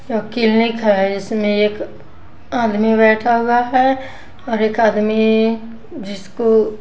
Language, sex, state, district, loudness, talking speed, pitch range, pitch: Hindi, female, Bihar, West Champaran, -16 LUFS, 125 wpm, 215-230 Hz, 220 Hz